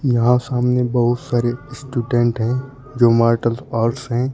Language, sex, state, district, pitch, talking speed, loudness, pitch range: Hindi, male, Uttar Pradesh, Shamli, 120 Hz, 140 wpm, -18 LUFS, 120-130 Hz